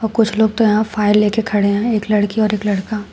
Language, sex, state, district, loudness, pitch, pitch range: Hindi, female, Uttar Pradesh, Shamli, -16 LUFS, 210 Hz, 205-220 Hz